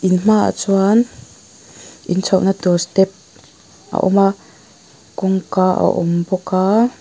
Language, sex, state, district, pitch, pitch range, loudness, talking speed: Mizo, female, Mizoram, Aizawl, 190 Hz, 185-195 Hz, -16 LUFS, 130 wpm